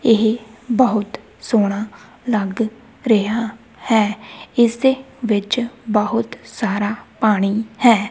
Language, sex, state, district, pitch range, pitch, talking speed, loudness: Punjabi, female, Punjab, Kapurthala, 210-235 Hz, 225 Hz, 95 wpm, -19 LUFS